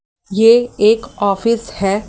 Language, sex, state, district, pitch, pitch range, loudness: Hindi, male, Delhi, New Delhi, 215 Hz, 200-230 Hz, -14 LUFS